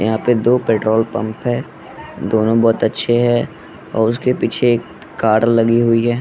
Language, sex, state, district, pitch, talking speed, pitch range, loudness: Hindi, male, Bihar, West Champaran, 115 Hz, 165 wpm, 110-120 Hz, -16 LUFS